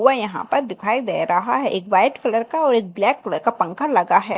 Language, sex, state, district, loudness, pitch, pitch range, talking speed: Hindi, female, Madhya Pradesh, Dhar, -20 LUFS, 230 Hz, 215-270 Hz, 260 wpm